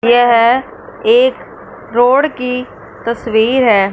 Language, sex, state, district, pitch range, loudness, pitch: Hindi, female, Punjab, Fazilka, 235-275 Hz, -13 LUFS, 245 Hz